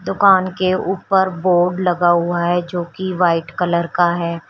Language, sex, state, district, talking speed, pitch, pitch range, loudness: Hindi, female, Uttar Pradesh, Shamli, 175 wpm, 175 Hz, 170-185 Hz, -17 LUFS